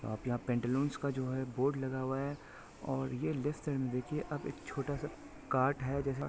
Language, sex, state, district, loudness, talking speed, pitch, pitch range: Hindi, male, Maharashtra, Solapur, -37 LUFS, 220 wpm, 135 Hz, 130-145 Hz